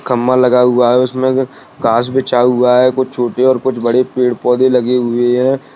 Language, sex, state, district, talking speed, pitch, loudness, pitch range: Hindi, male, Jharkhand, Sahebganj, 185 wpm, 125 Hz, -13 LUFS, 125-130 Hz